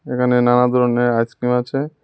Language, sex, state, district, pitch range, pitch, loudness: Bengali, male, Tripura, West Tripura, 120-125 Hz, 125 Hz, -17 LUFS